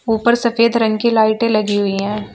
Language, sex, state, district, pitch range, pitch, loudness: Hindi, female, Uttar Pradesh, Shamli, 210-230 Hz, 220 Hz, -15 LUFS